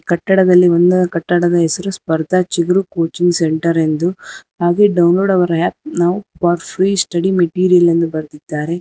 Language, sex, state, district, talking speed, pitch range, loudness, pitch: Kannada, female, Karnataka, Bangalore, 130 wpm, 170-185 Hz, -14 LUFS, 175 Hz